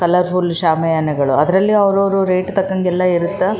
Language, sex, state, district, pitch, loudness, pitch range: Kannada, female, Karnataka, Raichur, 180 Hz, -15 LUFS, 170-190 Hz